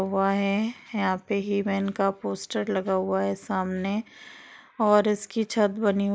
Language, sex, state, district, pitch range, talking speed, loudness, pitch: Hindi, female, Bihar, Darbhanga, 190-215 Hz, 155 wpm, -26 LUFS, 200 Hz